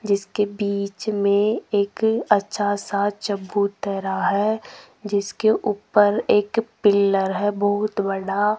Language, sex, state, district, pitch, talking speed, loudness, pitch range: Hindi, female, Rajasthan, Jaipur, 205 Hz, 105 wpm, -21 LUFS, 200-210 Hz